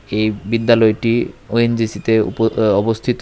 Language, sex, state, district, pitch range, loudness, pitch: Bengali, male, Tripura, West Tripura, 110-115 Hz, -16 LUFS, 115 Hz